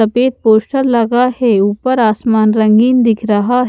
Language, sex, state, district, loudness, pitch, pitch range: Hindi, female, Haryana, Charkhi Dadri, -12 LUFS, 230 Hz, 220-250 Hz